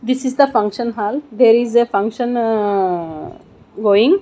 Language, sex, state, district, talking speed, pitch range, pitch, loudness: English, female, Odisha, Nuapada, 140 wpm, 205-245 Hz, 230 Hz, -16 LUFS